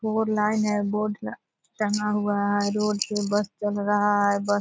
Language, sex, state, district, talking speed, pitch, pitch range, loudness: Hindi, female, Bihar, Purnia, 195 wpm, 205 Hz, 205-210 Hz, -25 LUFS